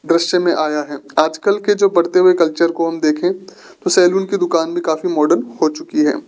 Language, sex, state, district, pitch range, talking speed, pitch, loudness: Hindi, male, Rajasthan, Jaipur, 165-190 Hz, 230 wpm, 175 Hz, -16 LUFS